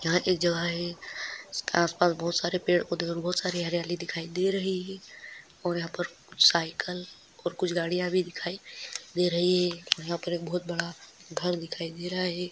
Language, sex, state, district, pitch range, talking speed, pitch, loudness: Hindi, female, Bihar, Vaishali, 170-180 Hz, 190 wpm, 175 Hz, -29 LUFS